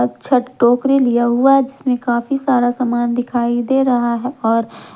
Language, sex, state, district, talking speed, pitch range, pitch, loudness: Hindi, female, Jharkhand, Garhwa, 155 wpm, 240-260 Hz, 245 Hz, -16 LUFS